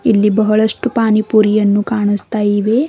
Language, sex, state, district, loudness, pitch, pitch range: Kannada, female, Karnataka, Bidar, -14 LUFS, 215 Hz, 205-220 Hz